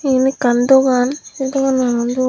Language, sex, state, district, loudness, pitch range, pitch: Chakma, female, Tripura, Dhalai, -15 LUFS, 250-270 Hz, 260 Hz